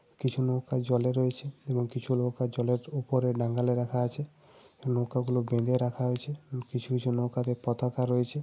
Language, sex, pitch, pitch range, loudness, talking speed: Bengali, male, 125 Hz, 125-130 Hz, -30 LUFS, 165 wpm